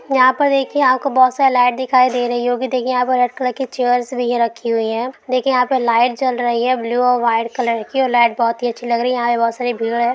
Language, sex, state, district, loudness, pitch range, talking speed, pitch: Hindi, female, Bihar, Lakhisarai, -16 LUFS, 235-255 Hz, 280 wpm, 245 Hz